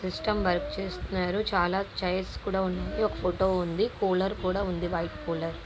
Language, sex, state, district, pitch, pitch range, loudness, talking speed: Telugu, female, Andhra Pradesh, Guntur, 185 Hz, 180-195 Hz, -29 LUFS, 140 wpm